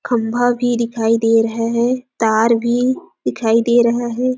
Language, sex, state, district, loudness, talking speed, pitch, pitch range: Hindi, female, Chhattisgarh, Sarguja, -16 LUFS, 165 wpm, 235 Hz, 225-245 Hz